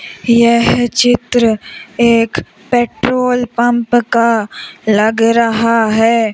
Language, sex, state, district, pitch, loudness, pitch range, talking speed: Hindi, female, Madhya Pradesh, Umaria, 235 Hz, -12 LUFS, 225-240 Hz, 85 wpm